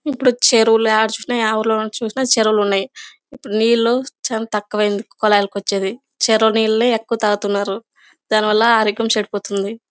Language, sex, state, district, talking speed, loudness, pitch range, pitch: Telugu, female, Karnataka, Bellary, 120 wpm, -17 LUFS, 210-230 Hz, 220 Hz